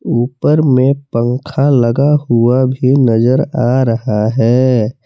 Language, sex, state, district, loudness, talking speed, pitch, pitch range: Hindi, male, Jharkhand, Palamu, -12 LUFS, 120 wpm, 130 Hz, 120-135 Hz